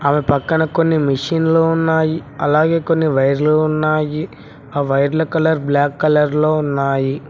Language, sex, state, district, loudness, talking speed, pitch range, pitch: Telugu, male, Telangana, Mahabubabad, -16 LUFS, 130 wpm, 145-160 Hz, 155 Hz